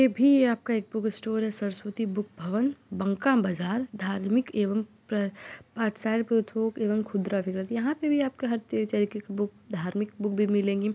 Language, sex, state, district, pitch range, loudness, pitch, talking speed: Hindi, female, Bihar, Muzaffarpur, 200-230 Hz, -28 LUFS, 215 Hz, 190 wpm